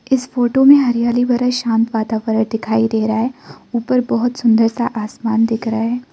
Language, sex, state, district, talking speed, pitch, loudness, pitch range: Hindi, female, Arunachal Pradesh, Lower Dibang Valley, 185 wpm, 235 Hz, -16 LUFS, 225-245 Hz